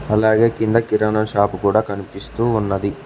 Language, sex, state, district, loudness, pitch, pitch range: Telugu, male, Telangana, Mahabubabad, -18 LUFS, 105 Hz, 100-115 Hz